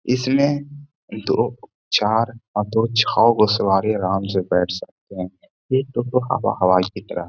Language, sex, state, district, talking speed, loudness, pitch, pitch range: Hindi, male, Bihar, Gaya, 215 wpm, -20 LUFS, 110 Hz, 95-125 Hz